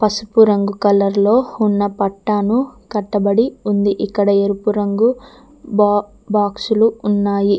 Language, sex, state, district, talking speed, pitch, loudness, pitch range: Telugu, female, Telangana, Mahabubabad, 105 wpm, 205 Hz, -16 LUFS, 205-220 Hz